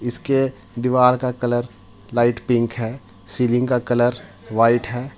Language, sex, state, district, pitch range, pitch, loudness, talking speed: Hindi, male, Jharkhand, Ranchi, 115-125 Hz, 120 Hz, -20 LUFS, 140 wpm